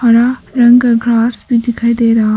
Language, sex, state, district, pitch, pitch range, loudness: Hindi, female, Arunachal Pradesh, Papum Pare, 235 Hz, 230-240 Hz, -11 LUFS